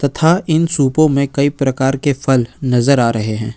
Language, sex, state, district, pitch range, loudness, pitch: Hindi, male, Jharkhand, Ranchi, 125-145 Hz, -15 LUFS, 140 Hz